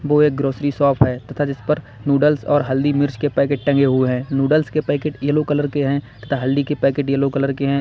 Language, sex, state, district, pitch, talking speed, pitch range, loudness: Hindi, male, Uttar Pradesh, Lalitpur, 140 Hz, 245 wpm, 135-145 Hz, -19 LUFS